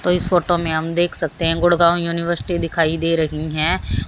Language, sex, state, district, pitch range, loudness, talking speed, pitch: Hindi, female, Haryana, Jhajjar, 160-175 Hz, -18 LUFS, 190 wpm, 165 Hz